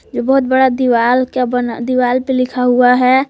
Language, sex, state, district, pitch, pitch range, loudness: Hindi, female, Jharkhand, Palamu, 250 Hz, 245-260 Hz, -13 LUFS